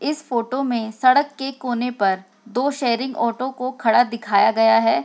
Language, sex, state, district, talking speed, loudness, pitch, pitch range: Hindi, female, Bihar, Sitamarhi, 190 wpm, -20 LUFS, 245 Hz, 225-260 Hz